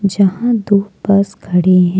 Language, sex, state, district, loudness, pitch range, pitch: Hindi, female, Jharkhand, Deoghar, -14 LUFS, 185-200 Hz, 195 Hz